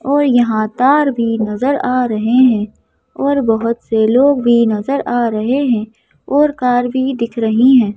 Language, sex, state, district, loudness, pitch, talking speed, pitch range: Hindi, female, Madhya Pradesh, Bhopal, -14 LUFS, 245 Hz, 175 wpm, 225-265 Hz